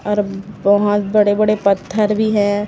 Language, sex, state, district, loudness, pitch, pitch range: Hindi, female, Chhattisgarh, Raipur, -16 LUFS, 205 Hz, 205-210 Hz